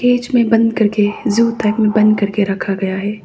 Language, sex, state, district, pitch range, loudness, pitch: Hindi, female, Arunachal Pradesh, Papum Pare, 205-230 Hz, -15 LUFS, 215 Hz